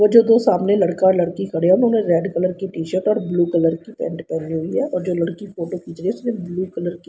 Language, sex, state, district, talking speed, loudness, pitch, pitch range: Hindi, female, Haryana, Rohtak, 295 wpm, -19 LUFS, 180 Hz, 170-200 Hz